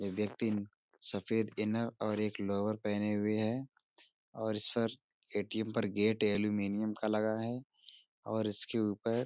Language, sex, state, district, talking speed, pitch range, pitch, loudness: Hindi, male, Uttar Pradesh, Budaun, 155 wpm, 105-110 Hz, 110 Hz, -35 LUFS